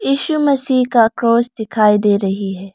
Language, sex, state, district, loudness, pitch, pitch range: Hindi, female, Arunachal Pradesh, Lower Dibang Valley, -15 LUFS, 230 Hz, 205-260 Hz